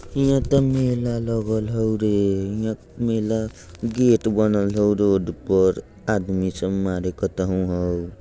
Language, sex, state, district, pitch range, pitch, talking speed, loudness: Bajjika, male, Bihar, Vaishali, 95-110 Hz, 105 Hz, 140 wpm, -22 LUFS